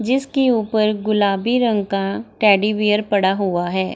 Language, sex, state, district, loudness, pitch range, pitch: Hindi, female, Bihar, Gaya, -18 LUFS, 195-220 Hz, 210 Hz